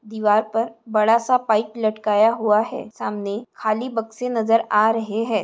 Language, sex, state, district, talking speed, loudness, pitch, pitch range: Hindi, female, Andhra Pradesh, Chittoor, 165 wpm, -21 LUFS, 220 Hz, 215-230 Hz